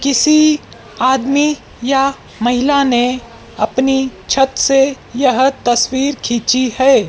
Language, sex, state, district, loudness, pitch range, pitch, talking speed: Hindi, female, Madhya Pradesh, Dhar, -14 LUFS, 250-275 Hz, 265 Hz, 100 wpm